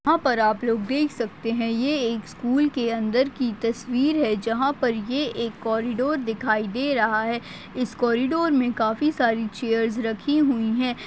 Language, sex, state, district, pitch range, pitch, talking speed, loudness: Hindi, female, Chhattisgarh, Bastar, 225-265 Hz, 240 Hz, 180 wpm, -23 LUFS